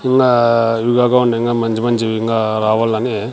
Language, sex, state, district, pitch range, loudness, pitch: Telugu, male, Andhra Pradesh, Sri Satya Sai, 110-120 Hz, -15 LUFS, 115 Hz